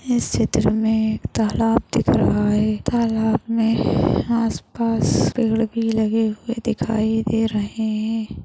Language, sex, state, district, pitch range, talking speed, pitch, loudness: Hindi, female, Maharashtra, Nagpur, 220-230 Hz, 140 wpm, 225 Hz, -20 LUFS